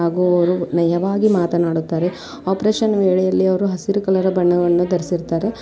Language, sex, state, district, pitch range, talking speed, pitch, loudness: Kannada, female, Karnataka, Belgaum, 175-195 Hz, 130 wpm, 180 Hz, -18 LUFS